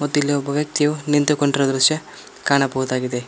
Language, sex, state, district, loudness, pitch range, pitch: Kannada, male, Karnataka, Koppal, -19 LUFS, 135-150 Hz, 145 Hz